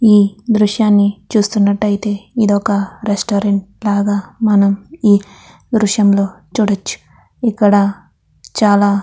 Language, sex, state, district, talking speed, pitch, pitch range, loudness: Telugu, female, Andhra Pradesh, Krishna, 95 wpm, 205 Hz, 200-215 Hz, -14 LUFS